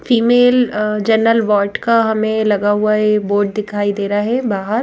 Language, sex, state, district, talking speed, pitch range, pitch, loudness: Hindi, female, Madhya Pradesh, Bhopal, 175 wpm, 205-230 Hz, 215 Hz, -15 LUFS